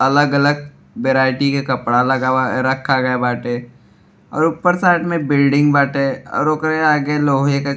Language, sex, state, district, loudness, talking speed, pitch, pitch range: Bhojpuri, male, Uttar Pradesh, Deoria, -16 LUFS, 160 wpm, 140 Hz, 130-145 Hz